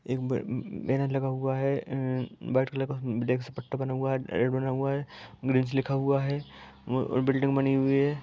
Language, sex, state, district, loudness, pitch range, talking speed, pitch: Hindi, male, Jharkhand, Sahebganj, -29 LUFS, 130-135 Hz, 205 wpm, 135 Hz